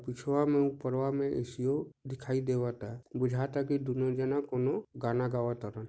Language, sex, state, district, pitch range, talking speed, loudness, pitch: Bhojpuri, male, Jharkhand, Sahebganj, 125-140 Hz, 175 wpm, -33 LUFS, 130 Hz